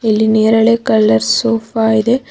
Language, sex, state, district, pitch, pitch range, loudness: Kannada, female, Karnataka, Bangalore, 220 Hz, 215-230 Hz, -12 LUFS